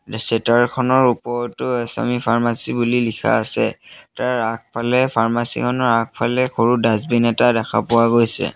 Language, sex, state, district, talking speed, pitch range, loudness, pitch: Assamese, male, Assam, Sonitpur, 135 wpm, 115-125 Hz, -17 LUFS, 120 Hz